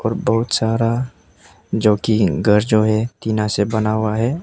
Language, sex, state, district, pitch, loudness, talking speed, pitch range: Hindi, male, Arunachal Pradesh, Papum Pare, 110 Hz, -18 LUFS, 160 wpm, 110-115 Hz